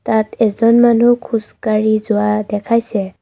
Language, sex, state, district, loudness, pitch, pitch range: Assamese, female, Assam, Kamrup Metropolitan, -15 LUFS, 220 Hz, 210-230 Hz